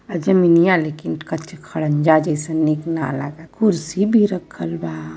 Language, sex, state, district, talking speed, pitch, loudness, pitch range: Awadhi, female, Uttar Pradesh, Varanasi, 150 wpm, 160 Hz, -18 LUFS, 150-170 Hz